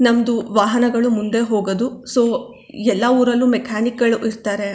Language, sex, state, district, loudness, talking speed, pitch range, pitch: Kannada, female, Karnataka, Chamarajanagar, -18 LUFS, 125 wpm, 220-245 Hz, 235 Hz